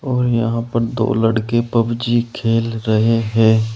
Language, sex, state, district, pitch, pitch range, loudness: Hindi, male, Uttar Pradesh, Saharanpur, 115 Hz, 110-120 Hz, -17 LUFS